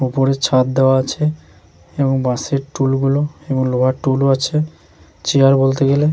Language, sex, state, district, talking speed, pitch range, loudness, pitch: Bengali, male, West Bengal, Jhargram, 165 wpm, 130-140 Hz, -16 LUFS, 135 Hz